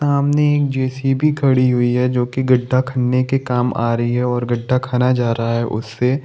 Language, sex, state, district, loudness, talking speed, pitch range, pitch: Hindi, male, Maharashtra, Chandrapur, -17 LUFS, 190 wpm, 120-135 Hz, 125 Hz